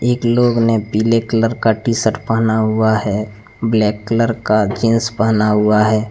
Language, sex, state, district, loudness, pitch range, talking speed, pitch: Hindi, male, Jharkhand, Deoghar, -15 LUFS, 110-115 Hz, 175 wpm, 110 Hz